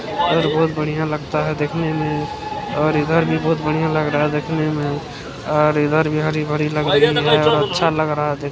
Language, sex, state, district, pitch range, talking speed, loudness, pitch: Hindi, male, Bihar, Araria, 150-160 Hz, 170 wpm, -18 LUFS, 155 Hz